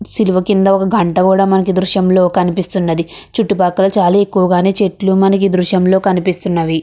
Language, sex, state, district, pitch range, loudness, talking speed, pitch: Telugu, female, Andhra Pradesh, Krishna, 185-195 Hz, -13 LUFS, 125 wpm, 190 Hz